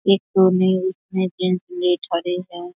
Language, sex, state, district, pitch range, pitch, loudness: Hindi, female, Bihar, Saharsa, 180-185 Hz, 185 Hz, -20 LUFS